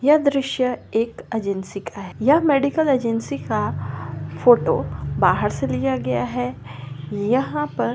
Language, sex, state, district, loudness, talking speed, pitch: Marwari, female, Rajasthan, Churu, -21 LUFS, 135 wpm, 190 Hz